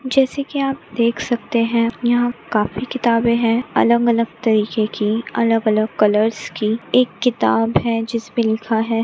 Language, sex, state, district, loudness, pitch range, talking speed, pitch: Hindi, female, Maharashtra, Pune, -18 LUFS, 220-240 Hz, 150 wpm, 230 Hz